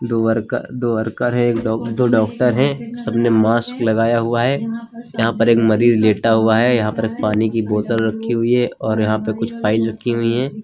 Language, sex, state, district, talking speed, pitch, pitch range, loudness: Hindi, male, Uttar Pradesh, Lucknow, 225 wpm, 115 Hz, 110-120 Hz, -17 LUFS